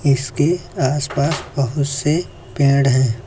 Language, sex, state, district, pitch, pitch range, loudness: Hindi, male, Uttar Pradesh, Lucknow, 140 Hz, 130-145 Hz, -18 LUFS